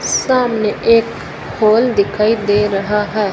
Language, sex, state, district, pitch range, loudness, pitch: Hindi, female, Rajasthan, Bikaner, 205-230 Hz, -14 LUFS, 210 Hz